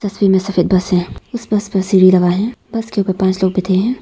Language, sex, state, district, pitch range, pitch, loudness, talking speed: Hindi, female, Arunachal Pradesh, Papum Pare, 185-210 Hz, 190 Hz, -15 LUFS, 270 wpm